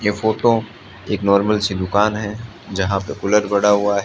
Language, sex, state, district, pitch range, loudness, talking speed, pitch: Hindi, male, Rajasthan, Bikaner, 100-105 Hz, -18 LUFS, 190 wpm, 105 Hz